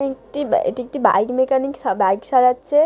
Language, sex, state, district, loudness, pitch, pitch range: Bengali, female, West Bengal, Dakshin Dinajpur, -18 LUFS, 260 Hz, 250-275 Hz